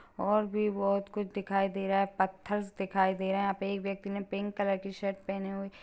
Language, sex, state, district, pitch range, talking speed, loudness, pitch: Hindi, female, Bihar, Jahanabad, 195-200 Hz, 215 wpm, -32 LUFS, 195 Hz